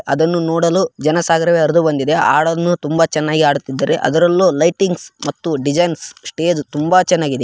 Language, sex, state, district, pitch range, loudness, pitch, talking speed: Kannada, male, Karnataka, Raichur, 150-170 Hz, -15 LUFS, 165 Hz, 135 wpm